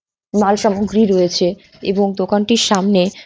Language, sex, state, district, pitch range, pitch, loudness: Bengali, female, West Bengal, North 24 Parganas, 185-210 Hz, 200 Hz, -16 LUFS